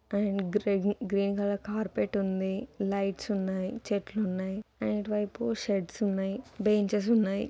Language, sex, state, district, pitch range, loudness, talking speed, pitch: Telugu, female, Telangana, Nalgonda, 195-210 Hz, -31 LUFS, 110 wpm, 200 Hz